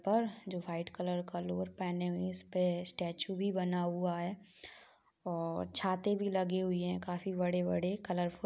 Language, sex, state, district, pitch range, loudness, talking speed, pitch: Hindi, female, Jharkhand, Sahebganj, 175-190 Hz, -36 LUFS, 185 wpm, 180 Hz